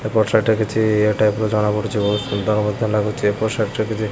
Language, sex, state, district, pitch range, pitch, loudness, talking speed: Odia, male, Odisha, Khordha, 105-110 Hz, 110 Hz, -19 LUFS, 260 wpm